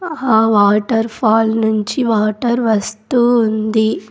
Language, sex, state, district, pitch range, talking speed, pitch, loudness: Telugu, female, Andhra Pradesh, Sri Satya Sai, 215-235 Hz, 100 wpm, 220 Hz, -15 LUFS